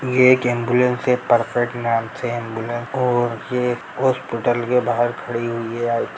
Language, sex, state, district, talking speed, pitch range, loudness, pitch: Hindi, male, Bihar, Jahanabad, 165 wpm, 120-125 Hz, -20 LUFS, 120 Hz